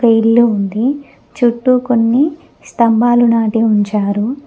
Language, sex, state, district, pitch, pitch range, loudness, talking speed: Telugu, female, Telangana, Mahabubabad, 235 Hz, 225-250 Hz, -13 LUFS, 95 wpm